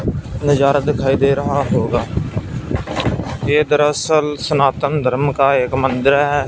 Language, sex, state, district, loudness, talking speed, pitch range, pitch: Hindi, male, Punjab, Fazilka, -17 LUFS, 120 wpm, 135-145 Hz, 140 Hz